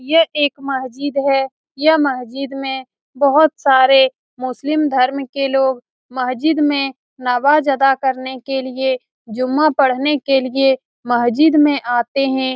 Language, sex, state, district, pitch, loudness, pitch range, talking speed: Hindi, female, Bihar, Saran, 270 Hz, -16 LUFS, 260-285 Hz, 135 wpm